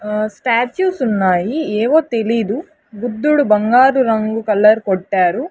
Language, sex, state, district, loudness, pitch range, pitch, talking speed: Telugu, female, Andhra Pradesh, Sri Satya Sai, -15 LUFS, 210-260 Hz, 225 Hz, 110 wpm